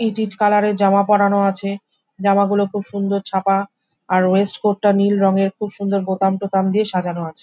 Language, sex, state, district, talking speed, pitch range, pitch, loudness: Bengali, female, West Bengal, Jhargram, 200 wpm, 195-205 Hz, 200 Hz, -18 LUFS